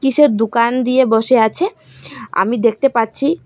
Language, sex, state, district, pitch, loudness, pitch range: Bengali, female, Assam, Hailakandi, 250 Hz, -15 LUFS, 230-275 Hz